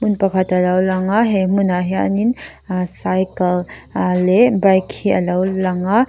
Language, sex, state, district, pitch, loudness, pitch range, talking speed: Mizo, female, Mizoram, Aizawl, 185 Hz, -17 LUFS, 180-200 Hz, 165 wpm